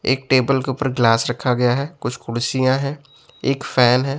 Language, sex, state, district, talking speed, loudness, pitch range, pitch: Hindi, male, Bihar, West Champaran, 200 wpm, -19 LUFS, 125-135 Hz, 130 Hz